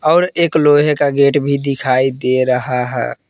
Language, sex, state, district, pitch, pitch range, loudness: Hindi, male, Jharkhand, Palamu, 140 Hz, 130-145 Hz, -14 LUFS